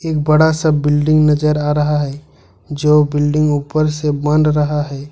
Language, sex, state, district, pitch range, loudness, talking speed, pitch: Hindi, male, Jharkhand, Ranchi, 145-155 Hz, -15 LUFS, 175 wpm, 150 Hz